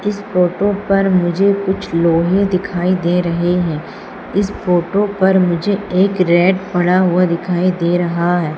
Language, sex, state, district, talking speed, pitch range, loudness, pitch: Hindi, female, Madhya Pradesh, Umaria, 155 wpm, 175-195 Hz, -15 LUFS, 180 Hz